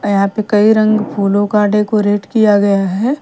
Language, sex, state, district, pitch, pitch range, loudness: Hindi, female, Bihar, Patna, 210 Hz, 200-215 Hz, -13 LUFS